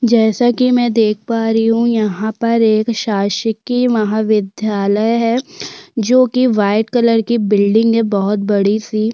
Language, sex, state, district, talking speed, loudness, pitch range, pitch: Hindi, female, Chhattisgarh, Korba, 160 wpm, -14 LUFS, 210-235 Hz, 225 Hz